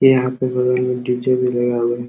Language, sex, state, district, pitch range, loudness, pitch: Hindi, male, Uttar Pradesh, Hamirpur, 120-130 Hz, -18 LUFS, 125 Hz